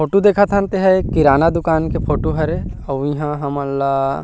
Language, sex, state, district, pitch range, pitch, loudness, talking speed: Chhattisgarhi, male, Chhattisgarh, Rajnandgaon, 140-190 Hz, 155 Hz, -17 LUFS, 200 wpm